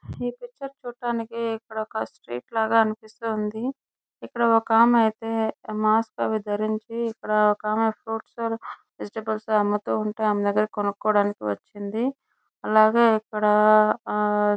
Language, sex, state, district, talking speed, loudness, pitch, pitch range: Telugu, female, Andhra Pradesh, Chittoor, 105 wpm, -24 LUFS, 220 Hz, 210-230 Hz